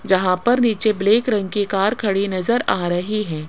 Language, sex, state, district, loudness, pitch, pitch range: Hindi, female, Rajasthan, Jaipur, -19 LUFS, 205 Hz, 185-220 Hz